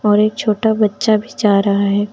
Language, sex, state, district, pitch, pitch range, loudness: Hindi, female, Uttar Pradesh, Lucknow, 210 Hz, 205-215 Hz, -15 LUFS